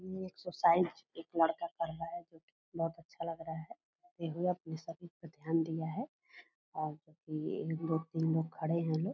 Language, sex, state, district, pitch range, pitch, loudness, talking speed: Hindi, female, Bihar, Purnia, 160-175 Hz, 165 Hz, -37 LUFS, 190 wpm